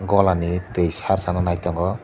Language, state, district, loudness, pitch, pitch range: Kokborok, Tripura, Dhalai, -21 LUFS, 90 Hz, 85-95 Hz